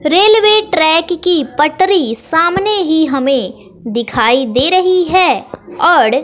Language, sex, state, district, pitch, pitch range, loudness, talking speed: Hindi, female, Bihar, West Champaran, 325 Hz, 265-370 Hz, -11 LUFS, 115 wpm